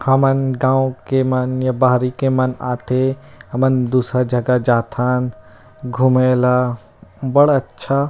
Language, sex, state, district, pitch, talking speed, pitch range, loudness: Chhattisgarhi, male, Chhattisgarh, Rajnandgaon, 130 Hz, 125 wpm, 125-130 Hz, -17 LUFS